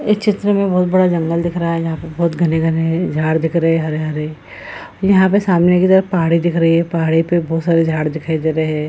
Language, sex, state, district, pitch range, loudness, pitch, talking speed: Hindi, female, Bihar, Jahanabad, 160-175 Hz, -15 LUFS, 165 Hz, 250 wpm